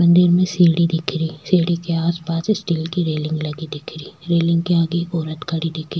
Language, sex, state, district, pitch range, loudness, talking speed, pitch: Rajasthani, female, Rajasthan, Churu, 160-170 Hz, -19 LUFS, 200 wpm, 165 Hz